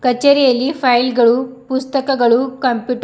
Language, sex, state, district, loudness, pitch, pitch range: Kannada, female, Karnataka, Bidar, -15 LUFS, 255 Hz, 245-270 Hz